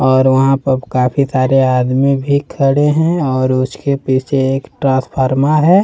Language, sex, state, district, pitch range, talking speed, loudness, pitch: Hindi, male, Jharkhand, Deoghar, 130-140 Hz, 155 wpm, -14 LUFS, 135 Hz